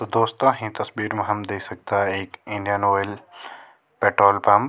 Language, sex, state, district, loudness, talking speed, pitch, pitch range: Garhwali, male, Uttarakhand, Tehri Garhwal, -22 LUFS, 180 wpm, 100 Hz, 100-110 Hz